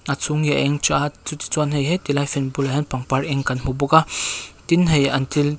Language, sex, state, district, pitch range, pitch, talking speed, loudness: Mizo, female, Mizoram, Aizawl, 135-150 Hz, 145 Hz, 280 wpm, -20 LUFS